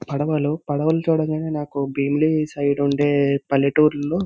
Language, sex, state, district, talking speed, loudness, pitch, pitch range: Telugu, male, Andhra Pradesh, Visakhapatnam, 125 wpm, -20 LUFS, 145 Hz, 140-155 Hz